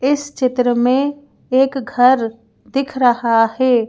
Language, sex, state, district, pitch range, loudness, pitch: Hindi, female, Madhya Pradesh, Bhopal, 240-270 Hz, -16 LUFS, 255 Hz